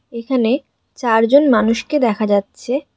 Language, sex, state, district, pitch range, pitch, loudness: Bengali, female, West Bengal, Alipurduar, 225-265 Hz, 240 Hz, -16 LUFS